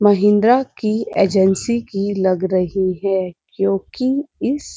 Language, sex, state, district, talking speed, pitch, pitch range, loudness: Hindi, female, Uttar Pradesh, Muzaffarnagar, 125 wpm, 200 Hz, 190-235 Hz, -18 LUFS